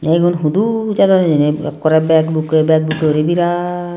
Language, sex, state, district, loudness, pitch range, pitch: Chakma, female, Tripura, Unakoti, -14 LUFS, 155-175 Hz, 160 Hz